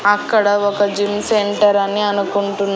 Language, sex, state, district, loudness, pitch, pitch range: Telugu, female, Andhra Pradesh, Annamaya, -16 LUFS, 205 Hz, 200-205 Hz